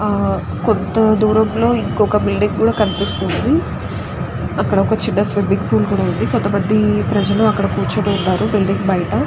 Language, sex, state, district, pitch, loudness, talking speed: Telugu, female, Andhra Pradesh, Guntur, 210 Hz, -16 LUFS, 140 wpm